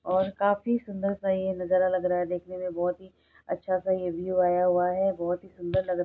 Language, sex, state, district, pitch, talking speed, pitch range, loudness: Hindi, female, Bihar, Saharsa, 185 Hz, 250 wpm, 180-190 Hz, -27 LUFS